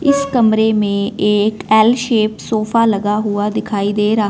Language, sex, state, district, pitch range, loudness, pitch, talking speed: Hindi, female, Punjab, Fazilka, 205-225 Hz, -15 LUFS, 215 Hz, 165 wpm